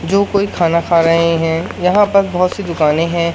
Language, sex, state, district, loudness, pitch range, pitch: Hindi, male, Madhya Pradesh, Katni, -14 LUFS, 165-195 Hz, 170 Hz